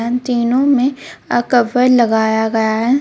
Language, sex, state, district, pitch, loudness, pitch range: Hindi, female, Jharkhand, Ranchi, 245 Hz, -14 LUFS, 225-260 Hz